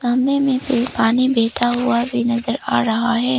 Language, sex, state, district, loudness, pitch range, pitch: Hindi, female, Arunachal Pradesh, Papum Pare, -18 LUFS, 235-255 Hz, 240 Hz